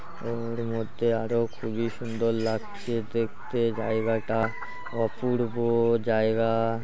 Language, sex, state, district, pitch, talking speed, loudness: Bengali, male, West Bengal, Malda, 115 Hz, 90 wpm, -28 LUFS